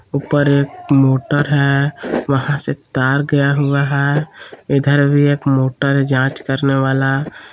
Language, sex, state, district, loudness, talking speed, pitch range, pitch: Hindi, male, Jharkhand, Palamu, -16 LUFS, 145 wpm, 135-145 Hz, 140 Hz